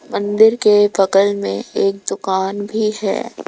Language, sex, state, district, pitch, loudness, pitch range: Hindi, female, Rajasthan, Jaipur, 205 Hz, -16 LUFS, 195-210 Hz